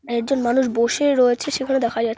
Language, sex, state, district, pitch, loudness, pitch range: Bengali, male, West Bengal, North 24 Parganas, 250 Hz, -19 LUFS, 235-270 Hz